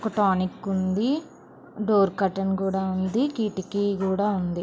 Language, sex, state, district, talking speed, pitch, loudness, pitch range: Telugu, female, Andhra Pradesh, Visakhapatnam, 130 wpm, 195 Hz, -25 LUFS, 190-210 Hz